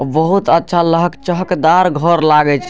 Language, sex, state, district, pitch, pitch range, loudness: Maithili, male, Bihar, Darbhanga, 170 Hz, 160-180 Hz, -13 LUFS